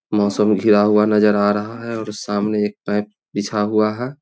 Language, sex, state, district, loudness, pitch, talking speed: Hindi, male, Bihar, Vaishali, -18 LUFS, 105 Hz, 200 wpm